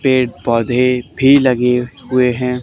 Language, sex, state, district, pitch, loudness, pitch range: Hindi, male, Haryana, Charkhi Dadri, 125 Hz, -14 LUFS, 125-130 Hz